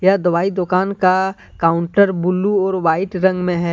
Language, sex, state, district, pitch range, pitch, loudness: Hindi, male, Jharkhand, Deoghar, 175-190 Hz, 185 Hz, -17 LUFS